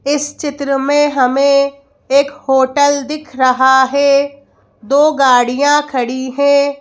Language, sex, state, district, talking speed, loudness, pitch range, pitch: Hindi, female, Madhya Pradesh, Bhopal, 115 wpm, -13 LUFS, 265-285 Hz, 280 Hz